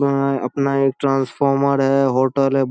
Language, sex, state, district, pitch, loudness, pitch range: Hindi, male, Bihar, Saharsa, 135 Hz, -18 LUFS, 135-140 Hz